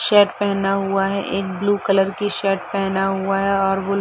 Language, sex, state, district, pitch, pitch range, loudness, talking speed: Hindi, female, Chhattisgarh, Sarguja, 195 Hz, 195-200 Hz, -19 LUFS, 225 wpm